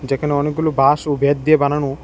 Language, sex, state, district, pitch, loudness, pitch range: Bengali, male, Tripura, West Tripura, 145 Hz, -17 LUFS, 140-150 Hz